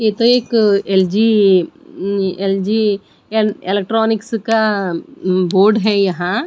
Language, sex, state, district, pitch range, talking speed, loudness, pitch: Hindi, female, Punjab, Pathankot, 195-220 Hz, 110 wpm, -15 LUFS, 205 Hz